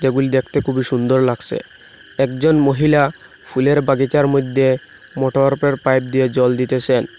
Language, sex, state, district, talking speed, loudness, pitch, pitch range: Bengali, male, Assam, Hailakandi, 125 wpm, -16 LUFS, 135 Hz, 130-140 Hz